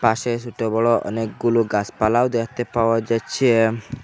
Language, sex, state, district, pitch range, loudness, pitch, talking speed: Bengali, male, Assam, Hailakandi, 110-120 Hz, -20 LUFS, 115 Hz, 120 wpm